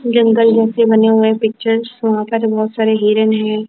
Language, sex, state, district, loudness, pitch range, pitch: Hindi, female, Punjab, Kapurthala, -13 LUFS, 220-225 Hz, 220 Hz